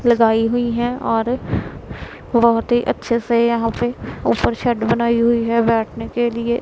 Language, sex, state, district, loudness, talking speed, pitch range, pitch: Hindi, female, Punjab, Pathankot, -18 LUFS, 165 wpm, 230-240 Hz, 235 Hz